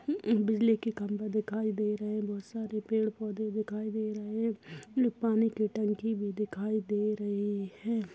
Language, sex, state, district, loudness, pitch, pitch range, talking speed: Hindi, male, Chhattisgarh, Raigarh, -32 LUFS, 215 Hz, 210-220 Hz, 170 wpm